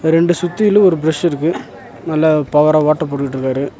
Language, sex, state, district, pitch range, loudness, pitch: Tamil, male, Tamil Nadu, Nilgiris, 150-170 Hz, -14 LUFS, 155 Hz